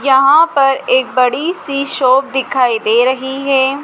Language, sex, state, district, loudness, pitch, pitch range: Hindi, female, Madhya Pradesh, Dhar, -13 LUFS, 270 Hz, 255-275 Hz